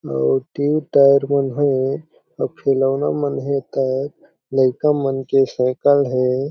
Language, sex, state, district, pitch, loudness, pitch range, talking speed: Chhattisgarhi, male, Chhattisgarh, Jashpur, 135 Hz, -18 LUFS, 130-140 Hz, 140 wpm